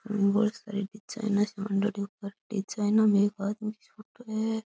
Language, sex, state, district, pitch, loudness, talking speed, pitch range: Rajasthani, female, Rajasthan, Churu, 210 Hz, -29 LUFS, 165 wpm, 200-215 Hz